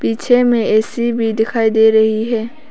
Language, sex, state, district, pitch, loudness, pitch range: Hindi, female, Arunachal Pradesh, Papum Pare, 225 Hz, -14 LUFS, 220-235 Hz